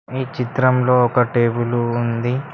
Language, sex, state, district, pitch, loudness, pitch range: Telugu, male, Telangana, Mahabubabad, 125 Hz, -18 LUFS, 120-130 Hz